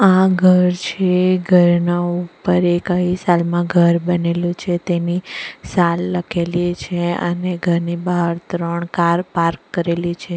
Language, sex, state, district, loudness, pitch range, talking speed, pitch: Gujarati, female, Gujarat, Valsad, -17 LUFS, 170-180 Hz, 135 wpm, 175 Hz